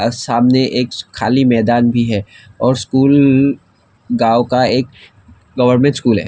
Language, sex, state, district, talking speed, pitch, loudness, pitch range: Hindi, male, Assam, Kamrup Metropolitan, 145 wpm, 120 Hz, -14 LUFS, 115-130 Hz